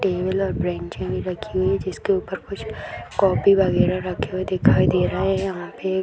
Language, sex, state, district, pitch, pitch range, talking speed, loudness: Hindi, female, Bihar, Jamui, 185 Hz, 180-190 Hz, 210 wpm, -22 LUFS